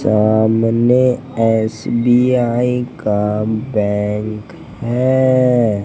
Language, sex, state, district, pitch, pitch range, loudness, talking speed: Hindi, male, Madhya Pradesh, Dhar, 115 Hz, 110-125 Hz, -15 LUFS, 50 wpm